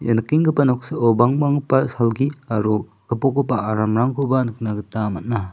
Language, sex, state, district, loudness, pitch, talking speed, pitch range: Garo, male, Meghalaya, South Garo Hills, -20 LUFS, 120 Hz, 120 wpm, 110-135 Hz